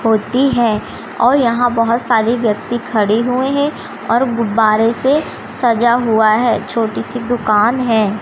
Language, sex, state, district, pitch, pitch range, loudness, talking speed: Hindi, female, Madhya Pradesh, Umaria, 235 Hz, 220-245 Hz, -14 LUFS, 145 wpm